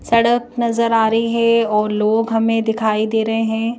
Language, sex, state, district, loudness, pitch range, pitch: Hindi, female, Madhya Pradesh, Bhopal, -17 LUFS, 220-230 Hz, 225 Hz